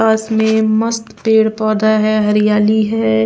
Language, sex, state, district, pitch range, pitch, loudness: Surgujia, female, Chhattisgarh, Sarguja, 215-220 Hz, 220 Hz, -14 LUFS